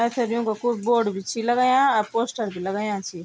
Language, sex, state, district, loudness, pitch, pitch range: Garhwali, female, Uttarakhand, Tehri Garhwal, -23 LUFS, 230 Hz, 205-240 Hz